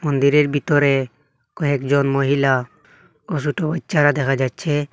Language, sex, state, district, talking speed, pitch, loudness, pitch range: Bengali, male, Assam, Hailakandi, 110 wpm, 140 Hz, -19 LUFS, 135-150 Hz